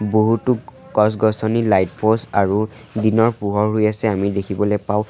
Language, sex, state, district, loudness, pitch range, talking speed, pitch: Assamese, male, Assam, Sonitpur, -18 LUFS, 105-110 Hz, 140 wpm, 110 Hz